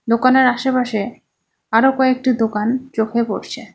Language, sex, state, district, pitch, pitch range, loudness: Bengali, female, West Bengal, Cooch Behar, 245 Hz, 225-260 Hz, -17 LUFS